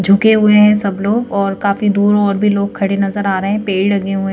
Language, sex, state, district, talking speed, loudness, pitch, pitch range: Hindi, female, Madhya Pradesh, Bhopal, 265 wpm, -13 LUFS, 200 Hz, 195-210 Hz